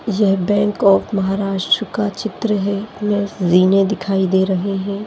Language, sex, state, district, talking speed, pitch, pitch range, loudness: Hindi, female, Maharashtra, Aurangabad, 155 wpm, 200 Hz, 195-205 Hz, -17 LUFS